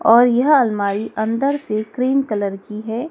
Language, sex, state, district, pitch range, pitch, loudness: Hindi, female, Madhya Pradesh, Dhar, 215-255 Hz, 225 Hz, -18 LUFS